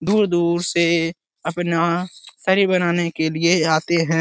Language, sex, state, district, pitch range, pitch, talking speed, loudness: Hindi, male, Bihar, Lakhisarai, 165-175 Hz, 170 Hz, 140 wpm, -19 LUFS